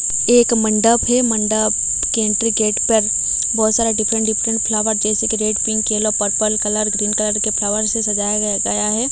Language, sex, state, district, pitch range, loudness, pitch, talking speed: Hindi, female, Odisha, Malkangiri, 210-225 Hz, -14 LUFS, 215 Hz, 190 wpm